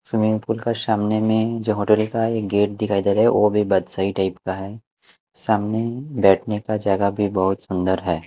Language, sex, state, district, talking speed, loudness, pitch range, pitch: Hindi, male, Maharashtra, Mumbai Suburban, 195 wpm, -20 LUFS, 95-110 Hz, 105 Hz